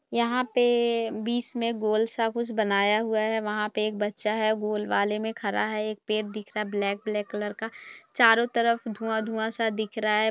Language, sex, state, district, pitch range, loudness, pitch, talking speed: Hindi, female, Bihar, Purnia, 210-230 Hz, -26 LUFS, 220 Hz, 210 wpm